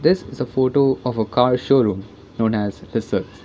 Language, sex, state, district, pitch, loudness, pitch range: English, female, Karnataka, Bangalore, 125 Hz, -20 LUFS, 100-130 Hz